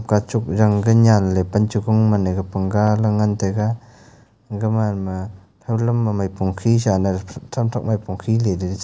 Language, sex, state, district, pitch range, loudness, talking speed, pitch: Wancho, male, Arunachal Pradesh, Longding, 95-115 Hz, -19 LUFS, 165 wpm, 105 Hz